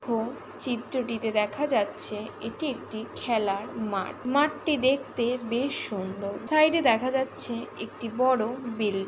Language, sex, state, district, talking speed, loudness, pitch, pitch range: Bengali, female, West Bengal, Jalpaiguri, 120 wpm, -28 LUFS, 235 Hz, 220-260 Hz